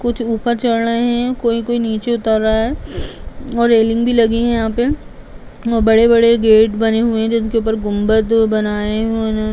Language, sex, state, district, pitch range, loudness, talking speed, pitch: Hindi, female, Uttar Pradesh, Jalaun, 220-235 Hz, -15 LUFS, 165 wpm, 230 Hz